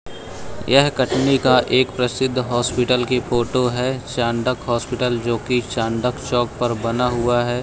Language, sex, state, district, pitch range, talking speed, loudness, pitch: Hindi, male, Madhya Pradesh, Katni, 120-125 Hz, 150 wpm, -19 LUFS, 125 Hz